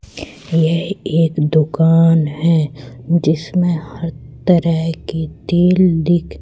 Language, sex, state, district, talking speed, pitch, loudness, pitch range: Hindi, female, Madhya Pradesh, Katni, 95 wpm, 165 Hz, -16 LUFS, 155-170 Hz